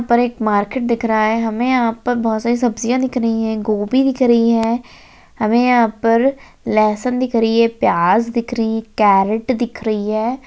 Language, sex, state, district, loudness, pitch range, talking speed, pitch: Hindi, female, Rajasthan, Nagaur, -16 LUFS, 220-245 Hz, 190 wpm, 230 Hz